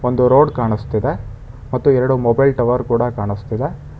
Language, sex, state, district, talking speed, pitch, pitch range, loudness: Kannada, male, Karnataka, Bangalore, 135 wpm, 120 Hz, 115-130 Hz, -17 LUFS